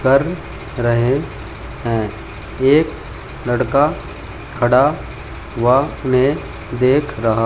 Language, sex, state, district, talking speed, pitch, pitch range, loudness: Hindi, male, Haryana, Jhajjar, 80 wpm, 120 Hz, 110-135 Hz, -17 LUFS